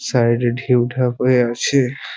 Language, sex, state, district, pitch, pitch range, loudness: Bengali, male, West Bengal, Purulia, 125 Hz, 120-130 Hz, -17 LUFS